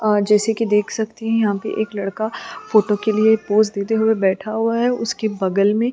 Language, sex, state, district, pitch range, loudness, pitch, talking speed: Hindi, female, Chhattisgarh, Sukma, 205-225 Hz, -19 LUFS, 215 Hz, 225 wpm